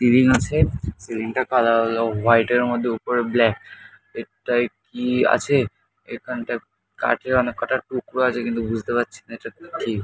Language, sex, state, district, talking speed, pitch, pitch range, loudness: Bengali, male, West Bengal, North 24 Parganas, 155 wpm, 120 Hz, 115-125 Hz, -21 LUFS